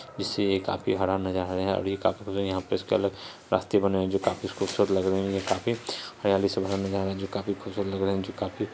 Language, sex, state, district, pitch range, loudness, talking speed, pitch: Hindi, male, Bihar, Saharsa, 95-100 Hz, -28 LUFS, 255 wpm, 95 Hz